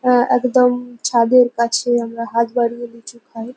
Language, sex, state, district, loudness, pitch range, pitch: Bengali, female, West Bengal, North 24 Parganas, -16 LUFS, 235-245 Hz, 240 Hz